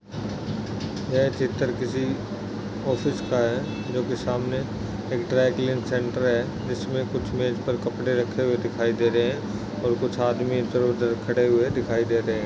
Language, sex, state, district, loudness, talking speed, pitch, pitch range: Hindi, male, Maharashtra, Aurangabad, -25 LUFS, 170 wpm, 120 Hz, 115-125 Hz